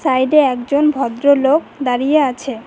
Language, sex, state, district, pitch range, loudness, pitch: Bengali, female, West Bengal, Cooch Behar, 255-290 Hz, -15 LUFS, 275 Hz